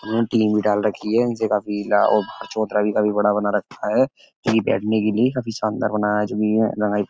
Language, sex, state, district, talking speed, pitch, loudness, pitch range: Hindi, male, Uttar Pradesh, Etah, 235 wpm, 105 Hz, -20 LUFS, 105-110 Hz